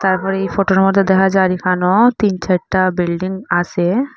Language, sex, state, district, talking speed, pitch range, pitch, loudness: Bengali, female, Assam, Hailakandi, 175 wpm, 180-195 Hz, 190 Hz, -15 LUFS